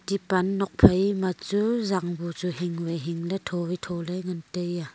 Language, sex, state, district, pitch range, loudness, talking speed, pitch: Wancho, female, Arunachal Pradesh, Longding, 170-190 Hz, -26 LUFS, 160 wpm, 180 Hz